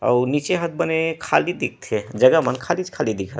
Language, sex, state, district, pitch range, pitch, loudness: Chhattisgarhi, male, Chhattisgarh, Rajnandgaon, 125-165 Hz, 145 Hz, -21 LUFS